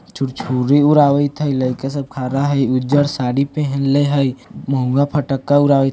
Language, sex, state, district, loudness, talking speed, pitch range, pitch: Bajjika, male, Bihar, Vaishali, -17 LUFS, 150 wpm, 130-145 Hz, 140 Hz